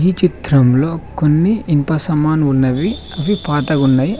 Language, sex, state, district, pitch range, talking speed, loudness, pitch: Telugu, male, Telangana, Mahabubabad, 140-180 Hz, 115 wpm, -15 LUFS, 155 Hz